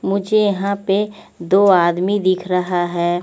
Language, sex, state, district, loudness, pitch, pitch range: Hindi, female, Chandigarh, Chandigarh, -17 LUFS, 190 Hz, 180-200 Hz